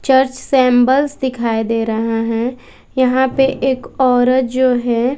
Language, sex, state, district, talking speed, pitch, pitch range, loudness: Hindi, female, Bihar, West Champaran, 140 wpm, 255 Hz, 240-265 Hz, -15 LUFS